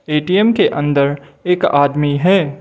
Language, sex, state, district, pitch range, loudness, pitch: Hindi, male, Mizoram, Aizawl, 145-180 Hz, -15 LUFS, 145 Hz